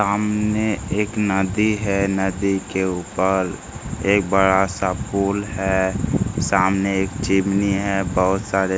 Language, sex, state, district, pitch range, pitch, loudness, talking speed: Hindi, male, Bihar, Jamui, 95-100 Hz, 95 Hz, -20 LUFS, 130 wpm